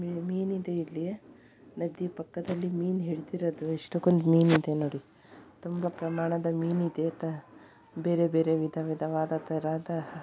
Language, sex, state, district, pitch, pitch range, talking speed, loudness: Kannada, female, Karnataka, Shimoga, 165 Hz, 160-175 Hz, 105 wpm, -30 LUFS